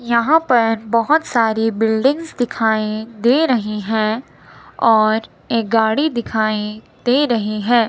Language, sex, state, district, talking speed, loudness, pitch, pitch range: Hindi, male, Himachal Pradesh, Shimla, 120 wpm, -17 LUFS, 225 Hz, 220-245 Hz